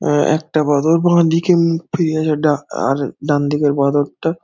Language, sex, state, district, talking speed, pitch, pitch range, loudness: Bengali, male, West Bengal, Dakshin Dinajpur, 150 wpm, 155 Hz, 145-165 Hz, -16 LUFS